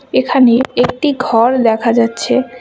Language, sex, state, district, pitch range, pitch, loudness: Bengali, female, West Bengal, Cooch Behar, 230-255 Hz, 245 Hz, -13 LUFS